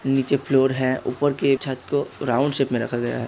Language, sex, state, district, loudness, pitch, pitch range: Hindi, male, Uttar Pradesh, Hamirpur, -22 LUFS, 135 Hz, 125-140 Hz